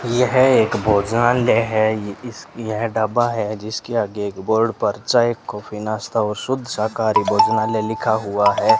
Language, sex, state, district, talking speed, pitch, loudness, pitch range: Hindi, male, Rajasthan, Bikaner, 155 wpm, 110 Hz, -19 LUFS, 110-120 Hz